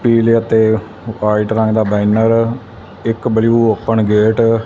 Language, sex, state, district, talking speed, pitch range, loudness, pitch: Punjabi, male, Punjab, Fazilka, 140 wpm, 110-115 Hz, -14 LUFS, 110 Hz